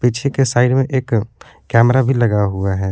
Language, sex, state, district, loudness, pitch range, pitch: Hindi, male, Jharkhand, Palamu, -16 LUFS, 105-130 Hz, 120 Hz